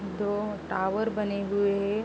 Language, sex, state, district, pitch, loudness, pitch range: Hindi, female, Uttar Pradesh, Jalaun, 205 Hz, -29 LUFS, 200-210 Hz